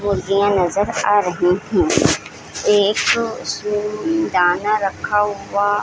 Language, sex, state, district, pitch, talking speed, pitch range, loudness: Hindi, female, Bihar, Jamui, 205 Hz, 105 wpm, 195-210 Hz, -18 LUFS